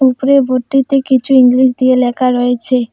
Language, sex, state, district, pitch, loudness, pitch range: Bengali, female, West Bengal, Alipurduar, 255 Hz, -11 LUFS, 250-265 Hz